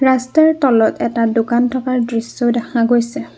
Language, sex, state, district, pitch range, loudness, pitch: Assamese, female, Assam, Kamrup Metropolitan, 235-260 Hz, -15 LUFS, 240 Hz